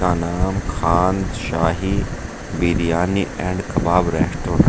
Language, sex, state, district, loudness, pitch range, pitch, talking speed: Hindi, male, Uttar Pradesh, Saharanpur, -20 LUFS, 85-95 Hz, 90 Hz, 115 wpm